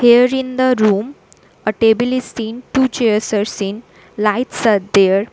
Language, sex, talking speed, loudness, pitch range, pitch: English, female, 170 wpm, -16 LUFS, 210-250 Hz, 225 Hz